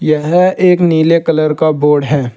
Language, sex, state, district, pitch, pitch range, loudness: Hindi, male, Uttar Pradesh, Saharanpur, 160 Hz, 150-170 Hz, -11 LUFS